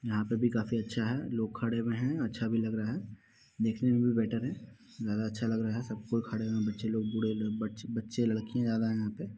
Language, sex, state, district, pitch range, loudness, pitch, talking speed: Hindi, male, Bihar, Muzaffarpur, 110-115 Hz, -33 LUFS, 115 Hz, 250 wpm